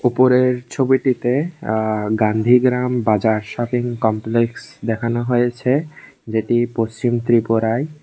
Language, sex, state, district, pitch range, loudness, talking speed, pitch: Bengali, male, Tripura, West Tripura, 115-125 Hz, -18 LUFS, 90 wpm, 120 Hz